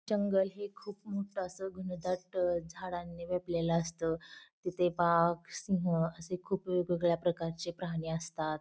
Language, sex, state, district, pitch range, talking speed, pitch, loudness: Marathi, female, Maharashtra, Pune, 170-190 Hz, 125 wpm, 175 Hz, -34 LUFS